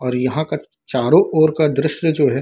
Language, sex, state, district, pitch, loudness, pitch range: Hindi, male, Bihar, Samastipur, 155 Hz, -17 LUFS, 140-155 Hz